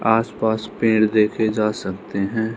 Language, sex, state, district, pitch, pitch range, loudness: Hindi, male, Arunachal Pradesh, Lower Dibang Valley, 110 Hz, 105-110 Hz, -20 LUFS